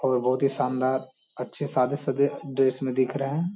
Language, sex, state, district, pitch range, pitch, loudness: Hindi, male, Bihar, Jamui, 130-140 Hz, 135 Hz, -26 LUFS